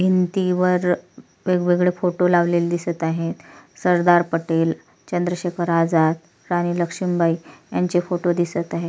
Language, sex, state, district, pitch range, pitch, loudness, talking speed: Marathi, female, Maharashtra, Solapur, 170-180 Hz, 175 Hz, -21 LUFS, 110 wpm